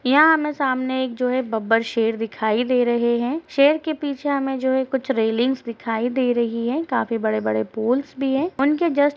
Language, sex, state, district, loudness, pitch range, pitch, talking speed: Hindi, female, Uttar Pradesh, Deoria, -21 LUFS, 230-280 Hz, 255 Hz, 210 wpm